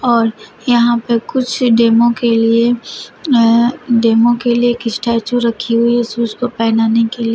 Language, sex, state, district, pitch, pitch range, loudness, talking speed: Hindi, female, Uttar Pradesh, Shamli, 235 Hz, 230-240 Hz, -13 LUFS, 170 wpm